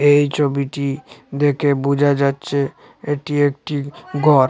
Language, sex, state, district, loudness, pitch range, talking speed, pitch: Bengali, male, Assam, Hailakandi, -19 LUFS, 140-145 Hz, 105 wpm, 145 Hz